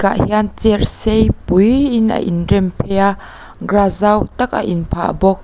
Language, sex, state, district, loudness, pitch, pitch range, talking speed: Mizo, female, Mizoram, Aizawl, -14 LUFS, 200 Hz, 195-220 Hz, 200 wpm